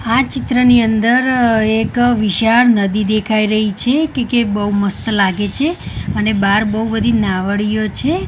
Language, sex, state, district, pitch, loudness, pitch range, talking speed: Gujarati, female, Gujarat, Gandhinagar, 220 Hz, -14 LUFS, 205-240 Hz, 150 wpm